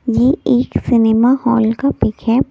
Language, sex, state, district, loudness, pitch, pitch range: Hindi, female, Delhi, New Delhi, -14 LUFS, 240 Hz, 230-255 Hz